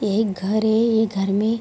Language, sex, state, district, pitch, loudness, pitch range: Hindi, female, Bihar, Bhagalpur, 215 Hz, -20 LUFS, 200-220 Hz